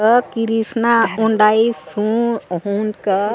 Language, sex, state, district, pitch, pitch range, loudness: Chhattisgarhi, female, Chhattisgarh, Sarguja, 220 Hz, 210-230 Hz, -17 LUFS